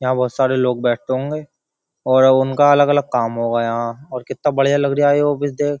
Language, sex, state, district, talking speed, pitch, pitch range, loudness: Hindi, male, Uttar Pradesh, Jyotiba Phule Nagar, 195 wpm, 130 Hz, 125-145 Hz, -17 LUFS